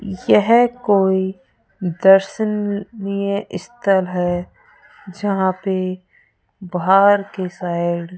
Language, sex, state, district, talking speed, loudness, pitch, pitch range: Hindi, female, Rajasthan, Jaipur, 80 wpm, -18 LUFS, 190 Hz, 180-205 Hz